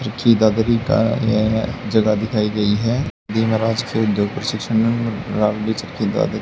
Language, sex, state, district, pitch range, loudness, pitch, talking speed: Hindi, male, Haryana, Charkhi Dadri, 110-115 Hz, -19 LUFS, 110 Hz, 75 wpm